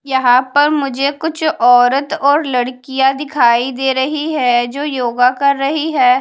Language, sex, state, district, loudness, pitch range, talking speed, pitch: Hindi, female, Haryana, Charkhi Dadri, -14 LUFS, 250-295 Hz, 155 wpm, 270 Hz